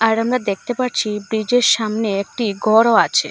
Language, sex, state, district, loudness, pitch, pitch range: Bengali, female, Assam, Hailakandi, -17 LUFS, 225 Hz, 210-240 Hz